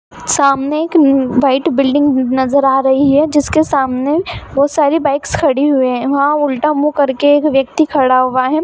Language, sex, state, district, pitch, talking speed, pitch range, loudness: Hindi, female, Bihar, Begusarai, 280 Hz, 185 wpm, 270-300 Hz, -13 LUFS